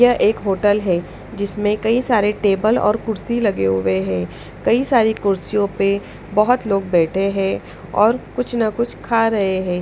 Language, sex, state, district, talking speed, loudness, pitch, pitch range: Hindi, female, Punjab, Pathankot, 170 wpm, -18 LUFS, 205 Hz, 190-225 Hz